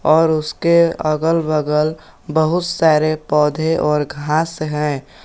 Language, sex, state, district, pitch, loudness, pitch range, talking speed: Hindi, male, Jharkhand, Garhwa, 155 Hz, -17 LUFS, 150-160 Hz, 115 wpm